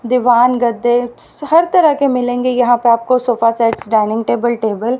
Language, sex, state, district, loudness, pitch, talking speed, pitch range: Hindi, female, Haryana, Rohtak, -14 LUFS, 245 Hz, 180 wpm, 230-250 Hz